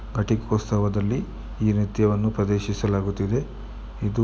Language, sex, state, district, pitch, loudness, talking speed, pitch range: Kannada, male, Karnataka, Mysore, 105 Hz, -24 LUFS, 100 wpm, 100-110 Hz